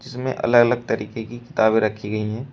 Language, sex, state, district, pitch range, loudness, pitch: Hindi, male, Uttar Pradesh, Shamli, 110-125 Hz, -21 LUFS, 115 Hz